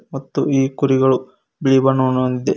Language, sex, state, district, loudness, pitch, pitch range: Kannada, male, Karnataka, Koppal, -17 LUFS, 135 Hz, 130-135 Hz